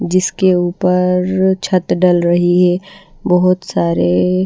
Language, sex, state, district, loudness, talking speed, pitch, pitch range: Hindi, female, Bihar, Patna, -14 LUFS, 105 wpm, 180 Hz, 175-185 Hz